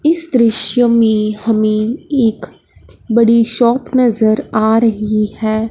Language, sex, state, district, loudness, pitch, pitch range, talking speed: Hindi, male, Punjab, Fazilka, -13 LUFS, 225 Hz, 215-240 Hz, 115 wpm